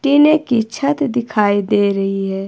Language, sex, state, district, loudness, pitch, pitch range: Hindi, female, Himachal Pradesh, Shimla, -16 LUFS, 220 Hz, 200-285 Hz